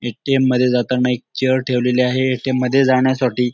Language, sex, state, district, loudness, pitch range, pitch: Marathi, male, Maharashtra, Dhule, -17 LUFS, 125-130 Hz, 125 Hz